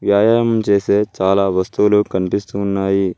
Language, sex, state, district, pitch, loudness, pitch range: Telugu, male, Telangana, Mahabubabad, 100 Hz, -16 LUFS, 95-105 Hz